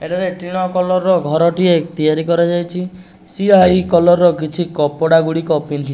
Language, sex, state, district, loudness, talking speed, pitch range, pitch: Odia, male, Odisha, Nuapada, -15 LUFS, 140 wpm, 160-180 Hz, 170 Hz